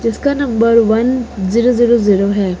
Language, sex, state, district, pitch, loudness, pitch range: Hindi, female, Uttar Pradesh, Lucknow, 230 Hz, -13 LUFS, 205-240 Hz